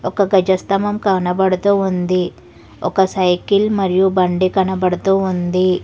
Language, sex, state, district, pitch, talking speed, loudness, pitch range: Telugu, female, Telangana, Hyderabad, 190 Hz, 100 wpm, -16 LUFS, 185-195 Hz